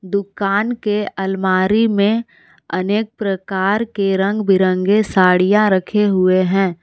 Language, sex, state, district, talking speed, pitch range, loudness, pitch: Hindi, female, Jharkhand, Palamu, 115 wpm, 190-210 Hz, -16 LUFS, 195 Hz